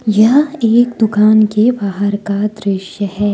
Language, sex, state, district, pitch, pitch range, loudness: Hindi, female, Jharkhand, Deoghar, 210 Hz, 205-225 Hz, -13 LUFS